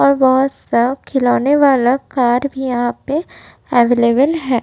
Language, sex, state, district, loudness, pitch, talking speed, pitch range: Hindi, female, Uttar Pradesh, Budaun, -15 LUFS, 260 Hz, 140 wpm, 245-275 Hz